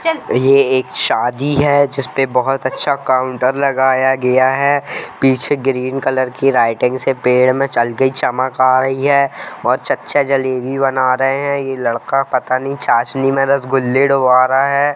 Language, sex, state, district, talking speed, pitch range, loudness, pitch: Hindi, male, Jharkhand, Jamtara, 160 wpm, 130-135 Hz, -14 LUFS, 135 Hz